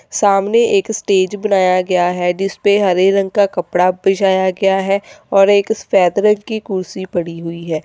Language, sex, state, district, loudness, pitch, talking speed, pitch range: Hindi, female, Uttar Pradesh, Lalitpur, -15 LUFS, 195 Hz, 170 wpm, 185-205 Hz